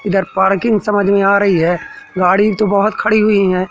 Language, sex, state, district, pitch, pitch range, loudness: Hindi, male, Madhya Pradesh, Katni, 200 Hz, 190-210 Hz, -13 LUFS